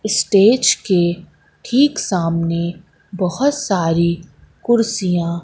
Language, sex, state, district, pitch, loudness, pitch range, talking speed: Hindi, female, Madhya Pradesh, Katni, 180 Hz, -17 LUFS, 170-220 Hz, 75 wpm